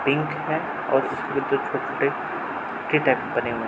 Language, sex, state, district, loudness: Hindi, male, Uttar Pradesh, Budaun, -24 LUFS